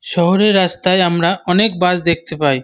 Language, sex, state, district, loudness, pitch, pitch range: Bengali, male, West Bengal, North 24 Parganas, -14 LUFS, 180 Hz, 170-185 Hz